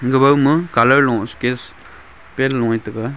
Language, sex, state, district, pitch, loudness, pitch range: Wancho, male, Arunachal Pradesh, Longding, 130 Hz, -16 LUFS, 115-140 Hz